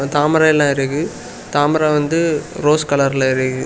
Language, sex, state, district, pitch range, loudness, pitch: Tamil, male, Tamil Nadu, Kanyakumari, 140-155 Hz, -16 LUFS, 145 Hz